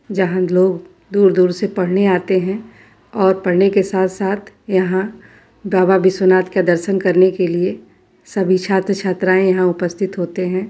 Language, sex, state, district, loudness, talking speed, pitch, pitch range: Bhojpuri, female, Uttar Pradesh, Varanasi, -16 LUFS, 165 wpm, 185 Hz, 185-195 Hz